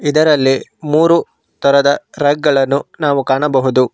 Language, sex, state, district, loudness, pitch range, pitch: Kannada, male, Karnataka, Bangalore, -14 LUFS, 135-150 Hz, 145 Hz